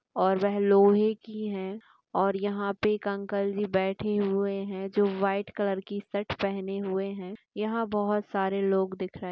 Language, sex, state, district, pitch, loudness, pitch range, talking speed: Hindi, female, Chhattisgarh, Kabirdham, 200 Hz, -28 LUFS, 195-205 Hz, 180 wpm